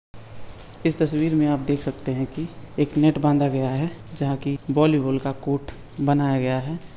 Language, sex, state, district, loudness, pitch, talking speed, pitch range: Hindi, male, Uttar Pradesh, Budaun, -23 LUFS, 140 Hz, 200 wpm, 135-150 Hz